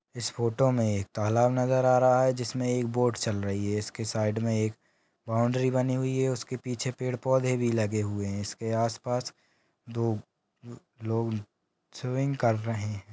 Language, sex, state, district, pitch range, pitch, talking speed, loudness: Hindi, male, Maharashtra, Sindhudurg, 110-125 Hz, 120 Hz, 180 wpm, -28 LUFS